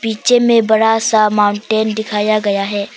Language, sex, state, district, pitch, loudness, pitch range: Hindi, female, Arunachal Pradesh, Papum Pare, 215 Hz, -14 LUFS, 210-225 Hz